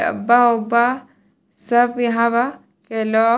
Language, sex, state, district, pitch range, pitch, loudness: Bhojpuri, female, Bihar, Saran, 230-240 Hz, 235 Hz, -17 LUFS